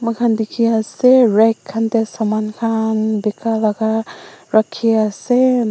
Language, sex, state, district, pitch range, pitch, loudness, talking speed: Nagamese, female, Nagaland, Dimapur, 220-235 Hz, 225 Hz, -16 LUFS, 125 wpm